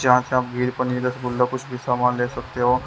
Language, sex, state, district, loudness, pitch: Hindi, male, Haryana, Jhajjar, -22 LUFS, 125 Hz